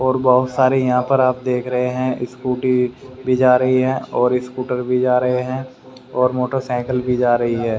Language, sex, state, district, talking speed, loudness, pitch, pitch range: Hindi, male, Haryana, Rohtak, 200 wpm, -18 LUFS, 125 Hz, 125-130 Hz